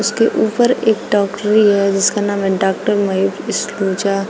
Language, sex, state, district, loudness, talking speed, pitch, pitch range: Hindi, female, Uttar Pradesh, Shamli, -15 LUFS, 155 wpm, 205 Hz, 195-210 Hz